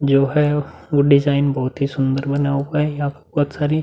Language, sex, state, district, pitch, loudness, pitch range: Hindi, male, Uttar Pradesh, Budaun, 140 Hz, -19 LUFS, 140-145 Hz